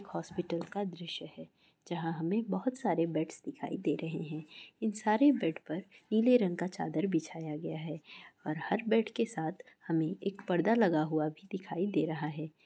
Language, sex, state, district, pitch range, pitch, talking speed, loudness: Hindi, female, West Bengal, North 24 Parganas, 160-205 Hz, 175 Hz, 185 wpm, -34 LUFS